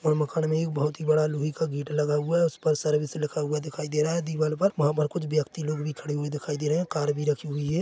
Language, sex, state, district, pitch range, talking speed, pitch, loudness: Hindi, male, Chhattisgarh, Korba, 150-155 Hz, 305 wpm, 150 Hz, -27 LUFS